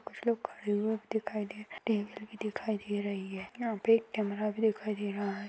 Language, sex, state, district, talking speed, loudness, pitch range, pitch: Hindi, female, Maharashtra, Dhule, 250 wpm, -34 LUFS, 205-220 Hz, 210 Hz